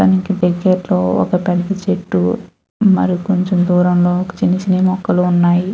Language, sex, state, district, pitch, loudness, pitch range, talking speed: Telugu, female, Andhra Pradesh, Chittoor, 180 Hz, -15 LUFS, 180-185 Hz, 125 wpm